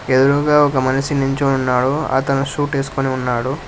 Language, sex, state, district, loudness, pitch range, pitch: Telugu, male, Telangana, Hyderabad, -17 LUFS, 130-140 Hz, 135 Hz